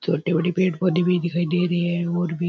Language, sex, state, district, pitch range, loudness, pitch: Rajasthani, male, Rajasthan, Churu, 175-180 Hz, -22 LUFS, 175 Hz